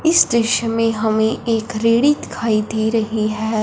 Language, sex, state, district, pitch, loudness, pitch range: Hindi, female, Punjab, Fazilka, 225 Hz, -17 LUFS, 220-230 Hz